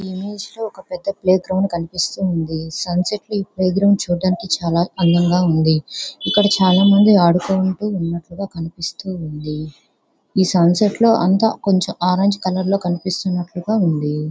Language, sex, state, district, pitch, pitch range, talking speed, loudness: Telugu, female, Andhra Pradesh, Visakhapatnam, 185 Hz, 170-200 Hz, 140 wpm, -18 LUFS